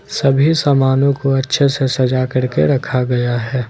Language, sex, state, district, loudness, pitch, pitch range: Hindi, male, Jharkhand, Ranchi, -15 LUFS, 135 Hz, 130-140 Hz